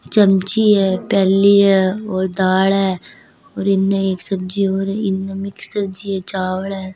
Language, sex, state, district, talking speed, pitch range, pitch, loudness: Hindi, female, Rajasthan, Churu, 165 wpm, 190-195 Hz, 195 Hz, -17 LUFS